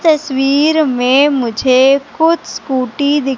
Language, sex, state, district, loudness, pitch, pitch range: Hindi, female, Madhya Pradesh, Katni, -13 LUFS, 275 Hz, 260-300 Hz